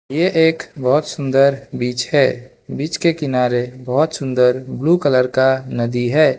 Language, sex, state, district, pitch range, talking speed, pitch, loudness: Hindi, male, Arunachal Pradesh, Lower Dibang Valley, 125-150 Hz, 150 wpm, 130 Hz, -17 LUFS